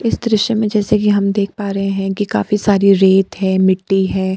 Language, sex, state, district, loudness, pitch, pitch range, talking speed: Hindi, female, Bihar, Kishanganj, -15 LUFS, 200 Hz, 195-210 Hz, 235 wpm